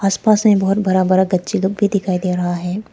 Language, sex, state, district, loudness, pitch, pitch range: Hindi, female, Arunachal Pradesh, Lower Dibang Valley, -16 LUFS, 190 Hz, 185-200 Hz